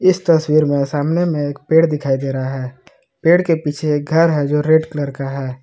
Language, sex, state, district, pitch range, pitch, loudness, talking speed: Hindi, male, Jharkhand, Palamu, 140-160 Hz, 150 Hz, -17 LUFS, 225 wpm